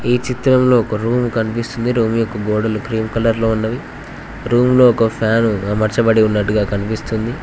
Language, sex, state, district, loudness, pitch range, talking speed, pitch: Telugu, male, Telangana, Mahabubabad, -16 LUFS, 110-120 Hz, 160 wpm, 115 Hz